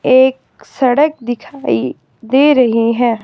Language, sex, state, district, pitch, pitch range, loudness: Hindi, female, Himachal Pradesh, Shimla, 255 Hz, 235-275 Hz, -14 LUFS